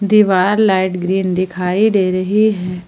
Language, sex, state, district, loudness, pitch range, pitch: Hindi, female, Jharkhand, Ranchi, -15 LUFS, 185-205 Hz, 190 Hz